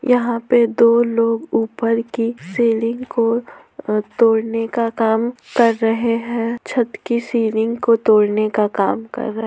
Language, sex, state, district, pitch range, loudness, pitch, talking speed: Hindi, female, Bihar, Gopalganj, 225-235 Hz, -18 LUFS, 230 Hz, 150 wpm